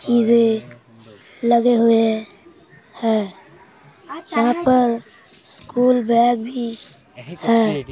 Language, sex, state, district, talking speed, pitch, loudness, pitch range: Hindi, male, Uttar Pradesh, Hamirpur, 85 wpm, 230 Hz, -18 LUFS, 210-240 Hz